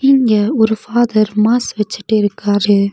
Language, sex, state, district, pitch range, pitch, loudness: Tamil, female, Tamil Nadu, Nilgiris, 205-235 Hz, 215 Hz, -14 LUFS